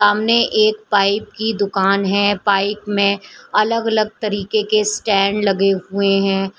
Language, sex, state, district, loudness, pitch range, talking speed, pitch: Hindi, female, Uttar Pradesh, Shamli, -17 LUFS, 195-215 Hz, 145 wpm, 205 Hz